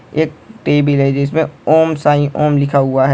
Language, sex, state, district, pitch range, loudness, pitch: Hindi, male, Chhattisgarh, Jashpur, 140-155 Hz, -14 LUFS, 145 Hz